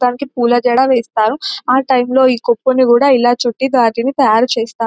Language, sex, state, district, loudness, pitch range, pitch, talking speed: Telugu, male, Telangana, Nalgonda, -13 LUFS, 240-265 Hz, 245 Hz, 170 wpm